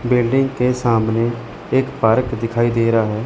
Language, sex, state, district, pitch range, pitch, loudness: Hindi, male, Chandigarh, Chandigarh, 115-130 Hz, 120 Hz, -18 LUFS